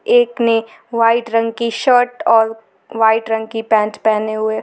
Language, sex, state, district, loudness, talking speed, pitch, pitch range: Hindi, female, Jharkhand, Garhwa, -16 LUFS, 170 wpm, 225 Hz, 220-235 Hz